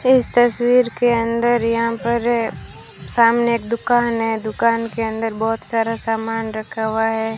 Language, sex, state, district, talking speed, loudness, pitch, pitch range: Hindi, female, Rajasthan, Bikaner, 155 wpm, -19 LUFS, 230 Hz, 225-235 Hz